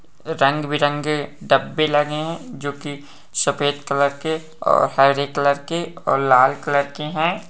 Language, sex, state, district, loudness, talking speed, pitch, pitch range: Hindi, male, Uttarakhand, Tehri Garhwal, -20 LUFS, 160 wpm, 145 Hz, 140-160 Hz